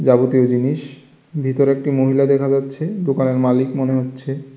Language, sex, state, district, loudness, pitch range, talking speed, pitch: Bengali, male, Tripura, West Tripura, -18 LUFS, 130-140 Hz, 145 wpm, 135 Hz